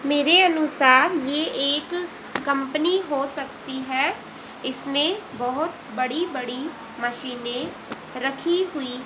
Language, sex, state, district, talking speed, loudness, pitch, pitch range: Hindi, female, Haryana, Rohtak, 100 wpm, -22 LUFS, 280 Hz, 255-320 Hz